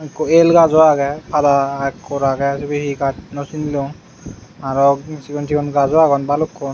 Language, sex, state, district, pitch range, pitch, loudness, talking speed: Chakma, male, Tripura, Unakoti, 140-155 Hz, 145 Hz, -16 LUFS, 160 wpm